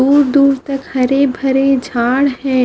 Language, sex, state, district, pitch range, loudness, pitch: Hindi, female, Haryana, Jhajjar, 260-275 Hz, -14 LUFS, 270 Hz